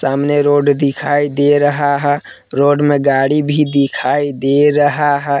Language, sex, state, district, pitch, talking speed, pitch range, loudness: Hindi, male, Jharkhand, Palamu, 145 Hz, 155 wpm, 140-145 Hz, -14 LUFS